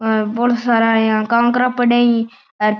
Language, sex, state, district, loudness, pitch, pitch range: Marwari, male, Rajasthan, Churu, -15 LUFS, 230 Hz, 220-240 Hz